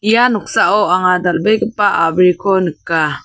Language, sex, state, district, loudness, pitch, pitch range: Garo, female, Meghalaya, South Garo Hills, -13 LUFS, 185 Hz, 175-210 Hz